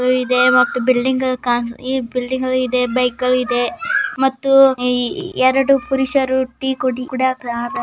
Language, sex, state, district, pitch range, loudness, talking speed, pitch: Kannada, female, Karnataka, Chamarajanagar, 250-265 Hz, -17 LUFS, 85 wpm, 255 Hz